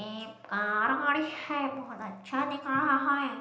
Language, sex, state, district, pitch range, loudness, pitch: Hindi, male, Chhattisgarh, Balrampur, 220-285 Hz, -30 LUFS, 275 Hz